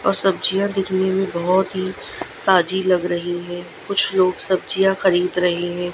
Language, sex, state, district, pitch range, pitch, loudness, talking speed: Hindi, female, Gujarat, Gandhinagar, 175-195 Hz, 185 Hz, -19 LUFS, 160 wpm